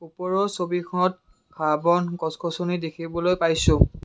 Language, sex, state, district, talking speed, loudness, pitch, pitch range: Assamese, male, Assam, Kamrup Metropolitan, 120 wpm, -24 LUFS, 175 Hz, 165-180 Hz